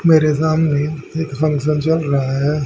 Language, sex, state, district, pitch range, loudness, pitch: Hindi, male, Haryana, Charkhi Dadri, 145-160 Hz, -17 LUFS, 150 Hz